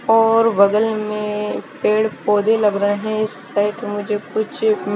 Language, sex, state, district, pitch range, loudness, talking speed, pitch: Hindi, female, Chandigarh, Chandigarh, 205-220 Hz, -18 LUFS, 135 wpm, 210 Hz